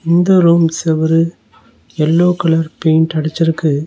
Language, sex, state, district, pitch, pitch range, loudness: Tamil, male, Tamil Nadu, Nilgiris, 165 Hz, 160-170 Hz, -13 LUFS